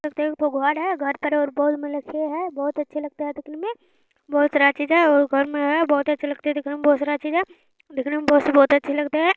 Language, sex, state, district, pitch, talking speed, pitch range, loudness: Hindi, female, Bihar, Araria, 295 Hz, 200 wpm, 290-305 Hz, -21 LUFS